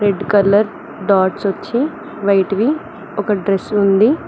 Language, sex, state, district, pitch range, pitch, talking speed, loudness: Telugu, female, Telangana, Mahabubabad, 195-225 Hz, 205 Hz, 125 wpm, -16 LUFS